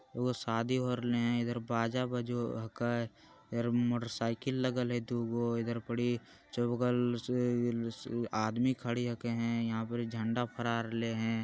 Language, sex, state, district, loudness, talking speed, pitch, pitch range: Magahi, male, Bihar, Jamui, -34 LUFS, 150 wpm, 120 Hz, 115-120 Hz